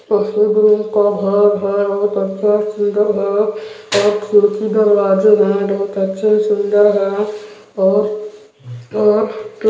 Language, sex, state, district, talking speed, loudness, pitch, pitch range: Hindi, male, Chhattisgarh, Balrampur, 115 wpm, -15 LUFS, 210 Hz, 200-210 Hz